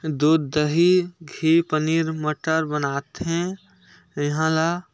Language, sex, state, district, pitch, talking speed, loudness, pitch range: Chhattisgarhi, male, Chhattisgarh, Sarguja, 160 Hz, 95 wpm, -22 LUFS, 150-165 Hz